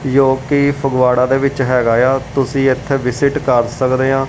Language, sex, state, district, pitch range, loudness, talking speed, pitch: Punjabi, male, Punjab, Kapurthala, 130-135 Hz, -14 LUFS, 195 wpm, 135 Hz